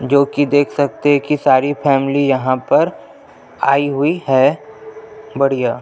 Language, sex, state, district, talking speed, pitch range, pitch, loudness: Hindi, male, Chhattisgarh, Jashpur, 145 wpm, 135-145 Hz, 140 Hz, -15 LUFS